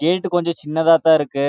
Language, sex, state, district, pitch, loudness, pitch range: Tamil, male, Karnataka, Chamarajanagar, 160 Hz, -17 LUFS, 150-170 Hz